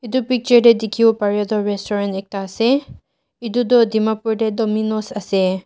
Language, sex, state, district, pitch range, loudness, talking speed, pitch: Nagamese, female, Nagaland, Dimapur, 205-235 Hz, -18 LUFS, 160 wpm, 220 Hz